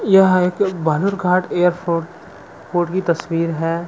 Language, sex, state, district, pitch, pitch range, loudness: Hindi, male, Chhattisgarh, Sukma, 175 Hz, 165-185 Hz, -18 LUFS